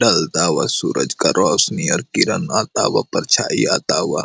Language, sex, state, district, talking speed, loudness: Hindi, male, Jharkhand, Jamtara, 185 wpm, -17 LUFS